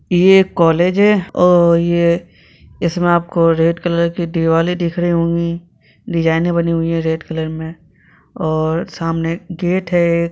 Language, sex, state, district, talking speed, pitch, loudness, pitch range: Hindi, male, Jharkhand, Sahebganj, 145 wpm, 170 Hz, -15 LUFS, 165-175 Hz